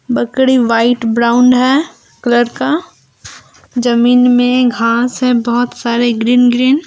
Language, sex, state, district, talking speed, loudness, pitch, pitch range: Hindi, female, Jharkhand, Deoghar, 130 wpm, -12 LUFS, 245 Hz, 235-250 Hz